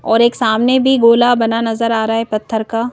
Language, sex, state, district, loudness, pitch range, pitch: Hindi, female, Madhya Pradesh, Bhopal, -14 LUFS, 225-235 Hz, 230 Hz